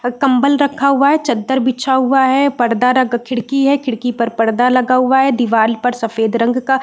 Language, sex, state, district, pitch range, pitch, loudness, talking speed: Hindi, female, Uttarakhand, Uttarkashi, 240-270 Hz, 255 Hz, -14 LUFS, 210 wpm